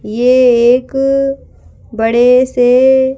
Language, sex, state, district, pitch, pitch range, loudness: Hindi, female, Madhya Pradesh, Bhopal, 250 Hz, 245-265 Hz, -10 LUFS